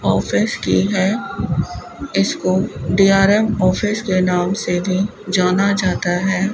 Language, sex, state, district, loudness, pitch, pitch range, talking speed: Hindi, female, Rajasthan, Bikaner, -17 LUFS, 190 Hz, 185-200 Hz, 120 wpm